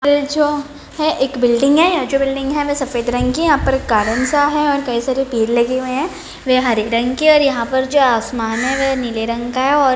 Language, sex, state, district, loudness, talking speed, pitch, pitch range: Hindi, female, Bihar, Begusarai, -16 LUFS, 265 wpm, 265 Hz, 240-290 Hz